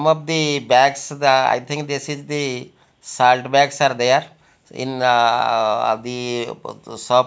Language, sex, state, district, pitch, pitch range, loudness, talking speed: English, male, Odisha, Malkangiri, 130 Hz, 125-145 Hz, -18 LUFS, 165 wpm